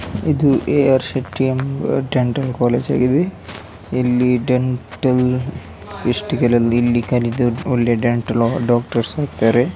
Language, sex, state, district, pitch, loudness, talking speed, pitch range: Kannada, male, Karnataka, Dakshina Kannada, 125 Hz, -18 LUFS, 125 wpm, 120-130 Hz